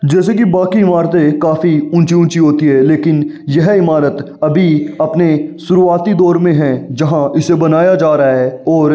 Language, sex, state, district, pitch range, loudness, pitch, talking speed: Hindi, male, Uttar Pradesh, Varanasi, 150-175 Hz, -11 LUFS, 160 Hz, 175 wpm